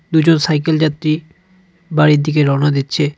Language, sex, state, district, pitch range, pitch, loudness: Bengali, male, West Bengal, Cooch Behar, 150-165 Hz, 155 Hz, -15 LUFS